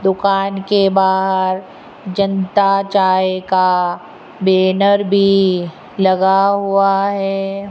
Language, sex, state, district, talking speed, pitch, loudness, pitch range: Hindi, female, Rajasthan, Jaipur, 85 wpm, 195 Hz, -15 LUFS, 185-195 Hz